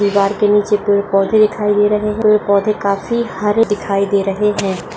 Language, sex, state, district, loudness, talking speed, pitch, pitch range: Hindi, female, Maharashtra, Dhule, -15 LUFS, 180 wpm, 205 Hz, 200-210 Hz